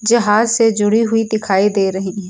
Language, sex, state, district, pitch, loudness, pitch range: Hindi, female, Uttar Pradesh, Lucknow, 215 Hz, -15 LUFS, 195-225 Hz